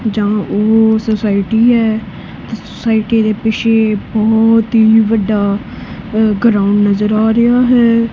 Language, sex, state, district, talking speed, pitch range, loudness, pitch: Punjabi, female, Punjab, Kapurthala, 110 wpm, 210-225 Hz, -12 LUFS, 220 Hz